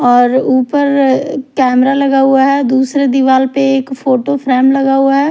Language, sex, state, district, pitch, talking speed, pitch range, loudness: Hindi, female, Haryana, Rohtak, 270 Hz, 170 wpm, 260-275 Hz, -11 LUFS